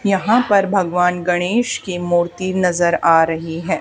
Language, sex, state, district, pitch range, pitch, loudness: Hindi, female, Haryana, Charkhi Dadri, 175-195 Hz, 180 Hz, -17 LUFS